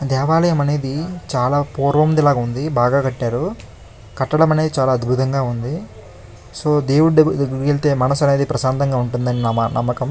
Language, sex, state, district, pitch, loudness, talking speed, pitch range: Telugu, male, Andhra Pradesh, Krishna, 135 Hz, -17 LUFS, 140 wpm, 120-145 Hz